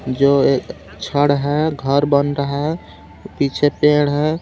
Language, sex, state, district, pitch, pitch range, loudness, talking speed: Hindi, female, Jharkhand, Garhwa, 145 Hz, 140-150 Hz, -17 LUFS, 135 wpm